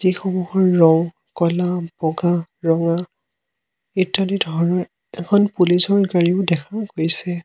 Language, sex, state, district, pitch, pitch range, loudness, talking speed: Assamese, male, Assam, Sonitpur, 175 Hz, 170-190 Hz, -19 LUFS, 95 wpm